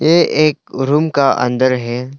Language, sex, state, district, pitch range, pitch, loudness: Hindi, male, Arunachal Pradesh, Longding, 125-155 Hz, 135 Hz, -14 LUFS